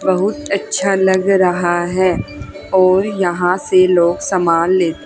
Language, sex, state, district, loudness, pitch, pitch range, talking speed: Hindi, female, Haryana, Rohtak, -15 LUFS, 185 Hz, 175-190 Hz, 130 wpm